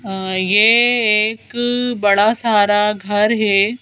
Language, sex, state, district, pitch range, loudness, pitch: Hindi, female, Madhya Pradesh, Bhopal, 205-235 Hz, -15 LUFS, 215 Hz